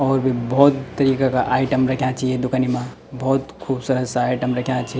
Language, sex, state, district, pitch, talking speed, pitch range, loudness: Garhwali, male, Uttarakhand, Tehri Garhwal, 130 Hz, 205 wpm, 125-135 Hz, -20 LUFS